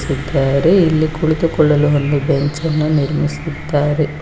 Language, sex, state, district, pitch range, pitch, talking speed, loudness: Kannada, female, Karnataka, Bangalore, 145-155 Hz, 150 Hz, 70 wpm, -15 LUFS